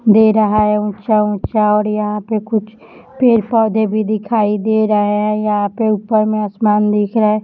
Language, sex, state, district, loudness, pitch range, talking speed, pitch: Hindi, female, Jharkhand, Jamtara, -15 LUFS, 210-220 Hz, 185 wpm, 215 Hz